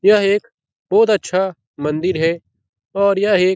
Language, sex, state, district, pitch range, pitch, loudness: Hindi, male, Bihar, Jahanabad, 155-200 Hz, 185 Hz, -17 LUFS